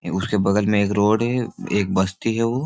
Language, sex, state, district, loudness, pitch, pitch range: Hindi, male, Bihar, Supaul, -20 LUFS, 105 Hz, 100-115 Hz